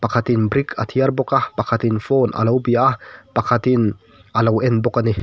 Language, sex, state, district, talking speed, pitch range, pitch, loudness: Mizo, male, Mizoram, Aizawl, 205 wpm, 110-125 Hz, 115 Hz, -18 LUFS